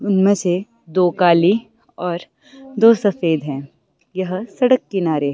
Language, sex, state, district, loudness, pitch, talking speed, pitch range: Hindi, female, Himachal Pradesh, Shimla, -18 LUFS, 185 Hz, 125 wpm, 175-220 Hz